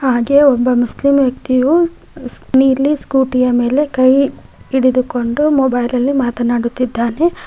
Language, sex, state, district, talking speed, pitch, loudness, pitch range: Kannada, female, Karnataka, Koppal, 105 wpm, 260 Hz, -14 LUFS, 245-280 Hz